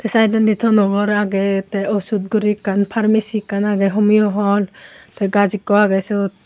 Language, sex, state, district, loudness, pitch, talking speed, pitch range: Chakma, female, Tripura, Unakoti, -17 LUFS, 205 Hz, 165 wpm, 200-215 Hz